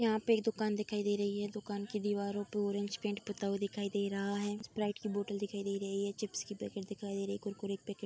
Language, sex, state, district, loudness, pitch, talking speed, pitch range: Hindi, female, Uttar Pradesh, Budaun, -37 LUFS, 205 Hz, 275 wpm, 200-210 Hz